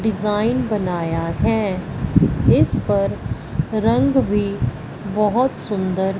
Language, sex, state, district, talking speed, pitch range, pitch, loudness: Hindi, female, Punjab, Fazilka, 85 wpm, 155-215 Hz, 195 Hz, -19 LUFS